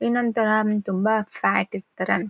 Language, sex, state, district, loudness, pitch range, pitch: Kannada, female, Karnataka, Shimoga, -23 LUFS, 210-230 Hz, 215 Hz